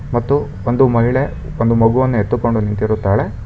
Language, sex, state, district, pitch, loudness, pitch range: Kannada, male, Karnataka, Bangalore, 120 Hz, -16 LUFS, 110-130 Hz